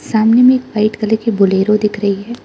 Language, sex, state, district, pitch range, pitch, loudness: Hindi, female, Arunachal Pradesh, Lower Dibang Valley, 210-230 Hz, 215 Hz, -13 LUFS